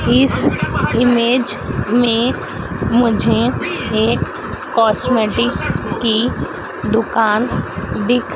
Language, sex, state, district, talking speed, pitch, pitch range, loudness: Hindi, female, Madhya Pradesh, Dhar, 65 wpm, 230 Hz, 220-245 Hz, -16 LUFS